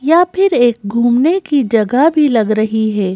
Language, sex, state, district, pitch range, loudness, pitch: Hindi, female, Madhya Pradesh, Bhopal, 220-310 Hz, -13 LUFS, 240 Hz